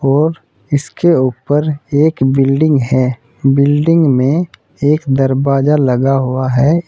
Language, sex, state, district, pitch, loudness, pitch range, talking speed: Hindi, male, Uttar Pradesh, Saharanpur, 140 Hz, -13 LUFS, 130-150 Hz, 115 wpm